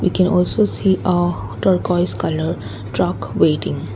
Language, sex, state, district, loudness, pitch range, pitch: English, female, Assam, Kamrup Metropolitan, -18 LUFS, 180-190 Hz, 180 Hz